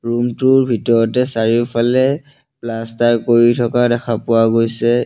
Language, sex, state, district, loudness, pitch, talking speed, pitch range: Assamese, male, Assam, Sonitpur, -15 LUFS, 120 Hz, 120 wpm, 115-125 Hz